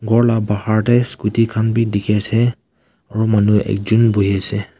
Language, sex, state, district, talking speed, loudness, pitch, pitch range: Nagamese, male, Nagaland, Kohima, 165 wpm, -16 LUFS, 110 Hz, 105-115 Hz